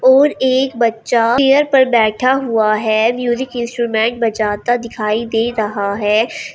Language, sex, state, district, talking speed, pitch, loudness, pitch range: Hindi, female, Uttar Pradesh, Shamli, 135 wpm, 235 Hz, -15 LUFS, 220-250 Hz